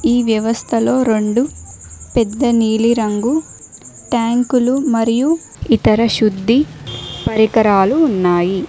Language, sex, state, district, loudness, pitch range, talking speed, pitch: Telugu, female, Telangana, Mahabubabad, -15 LUFS, 215-245 Hz, 75 wpm, 230 Hz